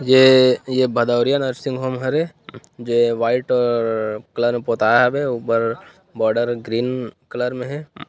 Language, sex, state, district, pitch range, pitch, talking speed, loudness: Chhattisgarhi, male, Chhattisgarh, Rajnandgaon, 120-130 Hz, 125 Hz, 150 wpm, -19 LUFS